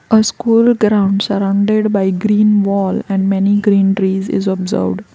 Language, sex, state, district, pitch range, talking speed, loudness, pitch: English, female, Gujarat, Valsad, 195-210 Hz, 150 wpm, -14 LUFS, 200 Hz